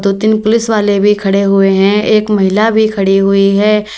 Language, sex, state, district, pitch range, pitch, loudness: Hindi, female, Uttar Pradesh, Lalitpur, 195-215 Hz, 205 Hz, -10 LUFS